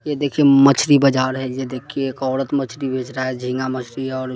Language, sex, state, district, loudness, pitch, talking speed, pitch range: Hindi, male, Bihar, West Champaran, -19 LUFS, 130 Hz, 220 wpm, 130-140 Hz